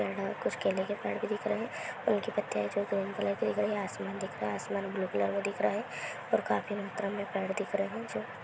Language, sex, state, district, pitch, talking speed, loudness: Hindi, female, Bihar, Purnia, 195 Hz, 65 wpm, -33 LUFS